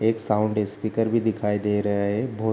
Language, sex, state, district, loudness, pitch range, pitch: Hindi, male, Bihar, Kishanganj, -24 LUFS, 105-110 Hz, 110 Hz